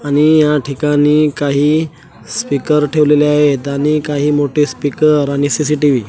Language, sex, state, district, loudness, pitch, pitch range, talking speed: Marathi, male, Maharashtra, Washim, -13 LUFS, 150 Hz, 145-150 Hz, 140 wpm